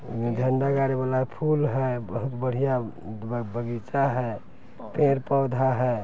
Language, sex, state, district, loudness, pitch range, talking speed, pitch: Hindi, male, Bihar, East Champaran, -26 LUFS, 120-135 Hz, 120 wpm, 130 Hz